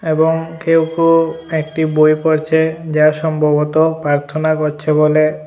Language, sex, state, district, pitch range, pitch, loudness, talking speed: Bengali, male, Tripura, West Tripura, 155-160 Hz, 155 Hz, -15 LUFS, 120 wpm